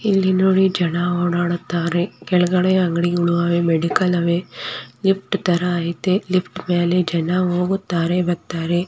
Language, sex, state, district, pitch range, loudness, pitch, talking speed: Kannada, female, Karnataka, Dakshina Kannada, 175-185 Hz, -19 LUFS, 175 Hz, 115 wpm